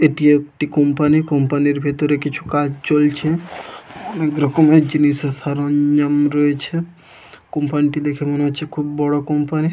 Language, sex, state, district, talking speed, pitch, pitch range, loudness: Bengali, male, West Bengal, Paschim Medinipur, 135 wpm, 145 Hz, 145-155 Hz, -17 LUFS